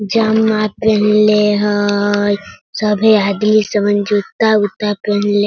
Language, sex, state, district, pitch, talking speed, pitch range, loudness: Hindi, female, Bihar, Sitamarhi, 210 Hz, 100 wpm, 205-215 Hz, -14 LUFS